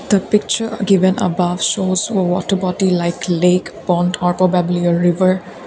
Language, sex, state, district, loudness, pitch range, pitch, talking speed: English, female, Assam, Kamrup Metropolitan, -16 LUFS, 175-190 Hz, 185 Hz, 150 wpm